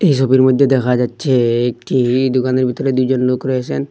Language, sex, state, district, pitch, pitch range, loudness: Bengali, male, Assam, Hailakandi, 130 Hz, 125-130 Hz, -15 LUFS